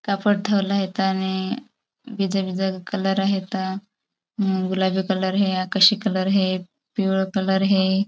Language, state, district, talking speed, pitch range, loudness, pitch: Bhili, Maharashtra, Dhule, 125 wpm, 190-200 Hz, -22 LUFS, 195 Hz